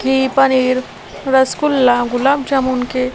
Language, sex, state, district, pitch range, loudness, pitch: Hindi, female, Delhi, New Delhi, 255-270 Hz, -15 LUFS, 260 Hz